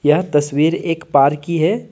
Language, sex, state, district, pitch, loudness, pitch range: Hindi, male, Jharkhand, Deoghar, 155 Hz, -16 LUFS, 145-165 Hz